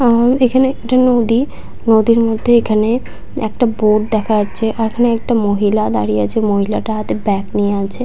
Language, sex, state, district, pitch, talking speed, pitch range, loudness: Bengali, female, West Bengal, Purulia, 225 Hz, 165 wpm, 210-240 Hz, -15 LUFS